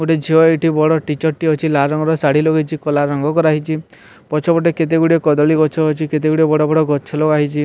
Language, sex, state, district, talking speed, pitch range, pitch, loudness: Odia, male, Odisha, Sambalpur, 225 wpm, 150-160 Hz, 155 Hz, -15 LUFS